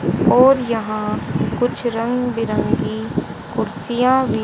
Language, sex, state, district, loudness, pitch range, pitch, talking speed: Hindi, female, Haryana, Jhajjar, -19 LUFS, 225-250 Hz, 240 Hz, 95 wpm